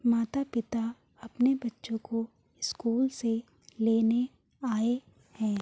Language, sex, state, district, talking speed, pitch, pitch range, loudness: Hindi, female, Uttar Pradesh, Hamirpur, 95 wpm, 230 Hz, 225-250 Hz, -31 LUFS